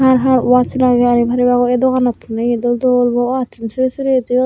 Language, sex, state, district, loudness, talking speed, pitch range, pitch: Chakma, female, Tripura, Unakoti, -14 LUFS, 215 wpm, 240-255 Hz, 250 Hz